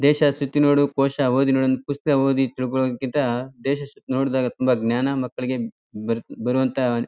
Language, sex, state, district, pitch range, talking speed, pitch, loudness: Kannada, male, Karnataka, Chamarajanagar, 125-140 Hz, 160 wpm, 130 Hz, -22 LUFS